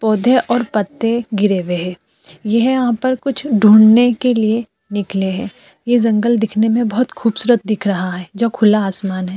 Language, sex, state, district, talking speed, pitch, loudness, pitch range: Hindi, female, Uttar Pradesh, Jyotiba Phule Nagar, 180 wpm, 220 Hz, -15 LUFS, 205-235 Hz